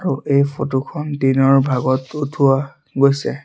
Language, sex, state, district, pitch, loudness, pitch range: Assamese, male, Assam, Sonitpur, 135 Hz, -17 LUFS, 135-145 Hz